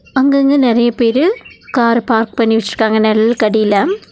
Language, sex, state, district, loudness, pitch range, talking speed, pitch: Tamil, female, Tamil Nadu, Nilgiris, -13 LUFS, 220-270 Hz, 115 wpm, 235 Hz